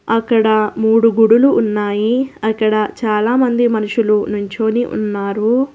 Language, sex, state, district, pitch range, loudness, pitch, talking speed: Telugu, female, Telangana, Hyderabad, 210-235 Hz, -15 LUFS, 220 Hz, 95 wpm